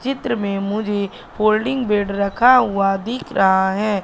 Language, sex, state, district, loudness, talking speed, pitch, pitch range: Hindi, female, Madhya Pradesh, Katni, -18 LUFS, 150 wpm, 210 Hz, 200-240 Hz